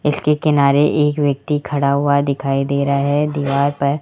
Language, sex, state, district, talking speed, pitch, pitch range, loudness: Hindi, male, Rajasthan, Jaipur, 180 wpm, 140 Hz, 140-150 Hz, -17 LUFS